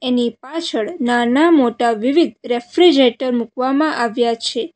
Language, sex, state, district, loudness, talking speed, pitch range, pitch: Gujarati, female, Gujarat, Valsad, -16 LUFS, 115 wpm, 240-310 Hz, 250 Hz